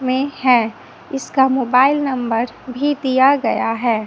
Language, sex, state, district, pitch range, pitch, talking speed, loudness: Hindi, female, Chhattisgarh, Raipur, 245-270 Hz, 260 Hz, 135 wpm, -17 LUFS